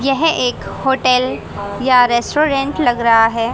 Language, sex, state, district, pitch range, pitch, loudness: Hindi, female, Haryana, Rohtak, 235-275 Hz, 250 Hz, -15 LUFS